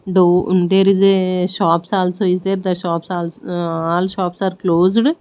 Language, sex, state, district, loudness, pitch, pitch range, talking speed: English, female, Odisha, Nuapada, -16 LUFS, 185 Hz, 175-190 Hz, 170 wpm